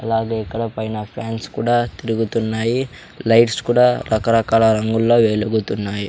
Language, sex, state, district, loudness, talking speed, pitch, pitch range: Telugu, male, Andhra Pradesh, Sri Satya Sai, -18 LUFS, 110 wpm, 115 Hz, 110-115 Hz